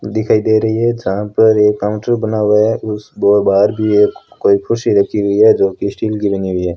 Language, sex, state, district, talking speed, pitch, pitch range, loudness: Hindi, female, Rajasthan, Bikaner, 250 wpm, 105 Hz, 100-110 Hz, -14 LUFS